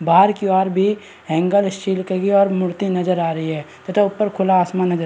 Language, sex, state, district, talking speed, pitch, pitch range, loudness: Hindi, male, Chhattisgarh, Rajnandgaon, 215 wpm, 190 Hz, 180-200 Hz, -18 LUFS